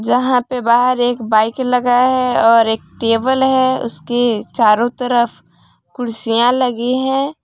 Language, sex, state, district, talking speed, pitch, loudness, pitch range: Hindi, female, Jharkhand, Palamu, 135 wpm, 245 Hz, -15 LUFS, 230-255 Hz